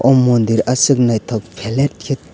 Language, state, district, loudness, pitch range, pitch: Kokborok, Tripura, West Tripura, -15 LUFS, 110-135 Hz, 120 Hz